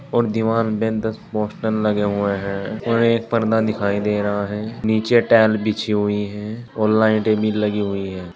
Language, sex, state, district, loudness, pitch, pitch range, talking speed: Hindi, male, Uttar Pradesh, Saharanpur, -20 LUFS, 110 Hz, 105-110 Hz, 185 wpm